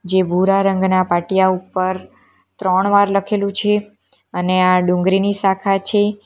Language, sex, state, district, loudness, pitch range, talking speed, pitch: Gujarati, female, Gujarat, Valsad, -16 LUFS, 185-200 Hz, 135 wpm, 190 Hz